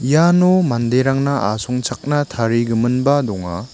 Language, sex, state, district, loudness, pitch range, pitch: Garo, male, Meghalaya, West Garo Hills, -17 LUFS, 115-145 Hz, 125 Hz